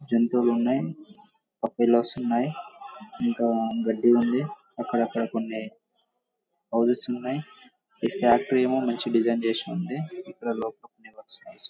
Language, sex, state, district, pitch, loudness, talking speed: Telugu, male, Telangana, Karimnagar, 125 Hz, -26 LUFS, 80 wpm